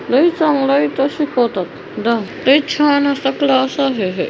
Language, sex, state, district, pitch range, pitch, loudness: Marathi, female, Maharashtra, Chandrapur, 245-290 Hz, 275 Hz, -16 LUFS